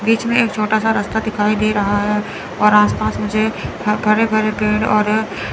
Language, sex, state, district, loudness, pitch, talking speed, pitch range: Hindi, female, Chandigarh, Chandigarh, -16 LUFS, 215 Hz, 195 wpm, 210-220 Hz